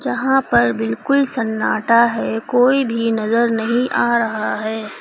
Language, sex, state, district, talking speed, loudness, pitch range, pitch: Hindi, female, Uttar Pradesh, Lucknow, 145 wpm, -17 LUFS, 220-245 Hz, 230 Hz